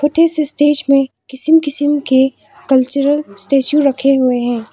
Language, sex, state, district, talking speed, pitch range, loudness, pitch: Hindi, female, Arunachal Pradesh, Papum Pare, 150 wpm, 260-290 Hz, -14 LUFS, 275 Hz